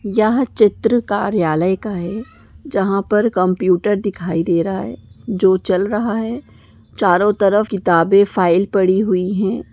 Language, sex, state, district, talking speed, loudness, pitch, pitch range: Hindi, female, Maharashtra, Solapur, 140 wpm, -16 LUFS, 200 Hz, 185-210 Hz